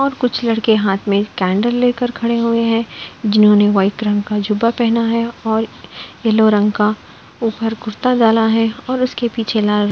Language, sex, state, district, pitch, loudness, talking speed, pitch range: Hindi, female, Uttar Pradesh, Budaun, 225 Hz, -16 LUFS, 180 wpm, 210-235 Hz